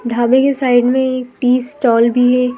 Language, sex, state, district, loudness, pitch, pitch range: Hindi, female, Madhya Pradesh, Bhopal, -14 LUFS, 250 Hz, 245-260 Hz